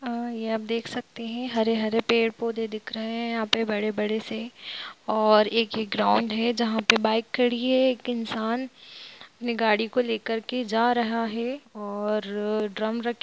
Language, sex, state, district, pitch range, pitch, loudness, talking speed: Hindi, female, Jharkhand, Jamtara, 220-235 Hz, 225 Hz, -26 LUFS, 170 wpm